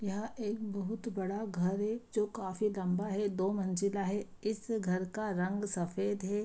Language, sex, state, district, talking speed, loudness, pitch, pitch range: Hindi, female, Bihar, Saharsa, 165 wpm, -35 LUFS, 205 Hz, 190-215 Hz